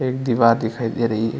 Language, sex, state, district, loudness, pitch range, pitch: Hindi, male, Chhattisgarh, Bilaspur, -19 LUFS, 115-120 Hz, 115 Hz